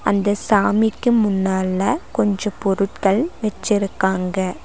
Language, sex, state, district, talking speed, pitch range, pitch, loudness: Tamil, female, Tamil Nadu, Nilgiris, 75 wpm, 190-210 Hz, 200 Hz, -19 LUFS